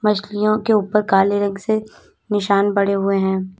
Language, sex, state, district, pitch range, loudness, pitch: Hindi, female, Uttar Pradesh, Lalitpur, 195-210 Hz, -18 LUFS, 205 Hz